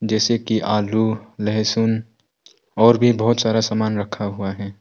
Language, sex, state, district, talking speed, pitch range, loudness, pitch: Hindi, male, Arunachal Pradesh, Longding, 150 wpm, 105-110 Hz, -19 LUFS, 110 Hz